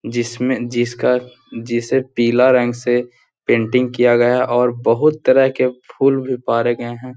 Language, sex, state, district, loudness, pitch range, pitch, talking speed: Hindi, male, Bihar, Jahanabad, -17 LUFS, 120-130 Hz, 125 Hz, 175 wpm